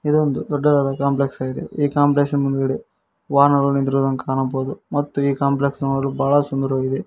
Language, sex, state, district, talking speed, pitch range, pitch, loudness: Kannada, male, Karnataka, Koppal, 145 wpm, 135-145 Hz, 140 Hz, -19 LUFS